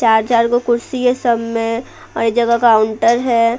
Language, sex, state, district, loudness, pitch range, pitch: Hindi, female, Bihar, Patna, -15 LUFS, 230-240 Hz, 235 Hz